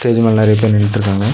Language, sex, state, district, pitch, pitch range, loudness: Tamil, male, Tamil Nadu, Nilgiris, 110 Hz, 105-115 Hz, -13 LUFS